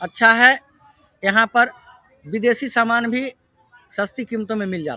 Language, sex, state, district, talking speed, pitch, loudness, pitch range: Hindi, male, Bihar, Vaishali, 155 wpm, 235 Hz, -18 LUFS, 220-250 Hz